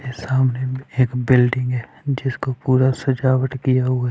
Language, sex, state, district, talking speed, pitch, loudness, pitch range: Hindi, male, Chhattisgarh, Raipur, 145 wpm, 130 Hz, -19 LUFS, 125-130 Hz